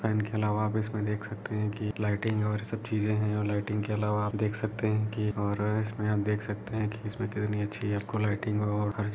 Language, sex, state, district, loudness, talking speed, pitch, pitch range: Hindi, male, Uttar Pradesh, Deoria, -31 LUFS, 255 wpm, 105 Hz, 105-110 Hz